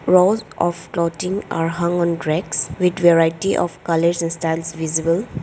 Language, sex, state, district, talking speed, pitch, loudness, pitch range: English, female, Arunachal Pradesh, Lower Dibang Valley, 155 wpm, 170 Hz, -19 LUFS, 165-175 Hz